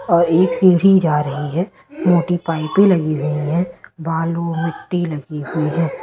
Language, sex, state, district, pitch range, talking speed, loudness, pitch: Hindi, female, Delhi, New Delhi, 155-175 Hz, 160 wpm, -17 LUFS, 170 Hz